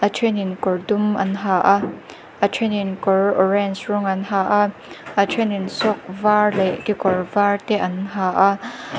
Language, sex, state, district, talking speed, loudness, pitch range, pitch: Mizo, female, Mizoram, Aizawl, 175 wpm, -19 LUFS, 195-210 Hz, 200 Hz